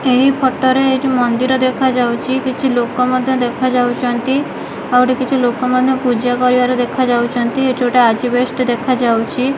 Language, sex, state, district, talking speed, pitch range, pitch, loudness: Odia, female, Odisha, Malkangiri, 130 wpm, 245-260 Hz, 250 Hz, -15 LUFS